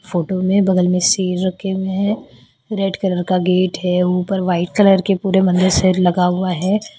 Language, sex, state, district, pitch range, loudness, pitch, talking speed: Hindi, female, Odisha, Khordha, 180-195 Hz, -16 LUFS, 185 Hz, 195 wpm